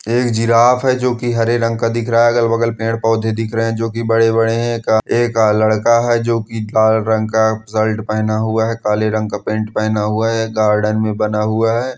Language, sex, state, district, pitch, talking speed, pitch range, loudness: Hindi, male, Andhra Pradesh, Anantapur, 115 Hz, 220 wpm, 110-115 Hz, -15 LUFS